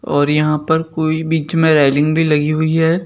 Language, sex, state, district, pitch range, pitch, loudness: Hindi, male, Madhya Pradesh, Bhopal, 150-160 Hz, 155 Hz, -15 LUFS